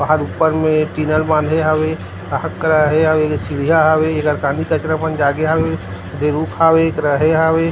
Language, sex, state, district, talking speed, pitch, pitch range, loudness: Chhattisgarhi, male, Chhattisgarh, Rajnandgaon, 85 wpm, 155 Hz, 150-160 Hz, -16 LUFS